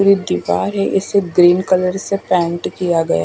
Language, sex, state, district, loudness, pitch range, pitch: Hindi, female, Odisha, Khordha, -16 LUFS, 170-195 Hz, 180 Hz